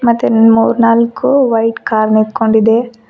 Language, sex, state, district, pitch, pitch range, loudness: Kannada, female, Karnataka, Koppal, 225 Hz, 225-235 Hz, -11 LUFS